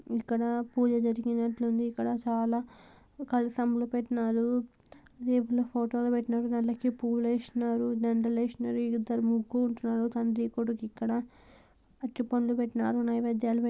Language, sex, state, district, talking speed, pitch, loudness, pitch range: Telugu, female, Andhra Pradesh, Anantapur, 105 wpm, 235 Hz, -30 LUFS, 230-240 Hz